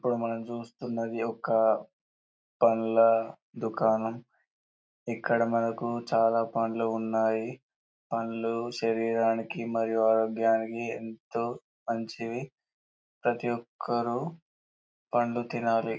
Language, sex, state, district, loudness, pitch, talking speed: Telugu, male, Telangana, Karimnagar, -29 LUFS, 115 Hz, 80 wpm